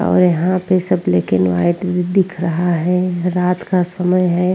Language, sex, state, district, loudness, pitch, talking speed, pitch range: Hindi, female, Uttar Pradesh, Jyotiba Phule Nagar, -16 LUFS, 180 Hz, 185 wpm, 175-180 Hz